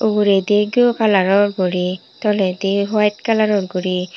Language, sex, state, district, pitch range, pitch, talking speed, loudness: Chakma, female, Tripura, Unakoti, 185-210 Hz, 205 Hz, 160 wpm, -17 LUFS